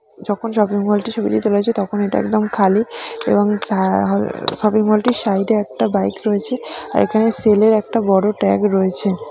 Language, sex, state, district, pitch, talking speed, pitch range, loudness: Bengali, female, West Bengal, Purulia, 210 Hz, 180 wpm, 200-220 Hz, -17 LUFS